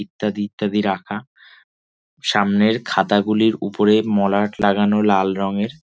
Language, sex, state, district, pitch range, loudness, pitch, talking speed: Bengali, male, West Bengal, Dakshin Dinajpur, 100-105 Hz, -18 LUFS, 105 Hz, 110 wpm